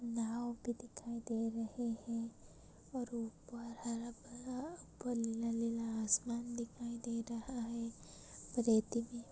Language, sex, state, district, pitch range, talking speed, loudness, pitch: Hindi, female, Maharashtra, Sindhudurg, 230-240 Hz, 130 wpm, -41 LUFS, 235 Hz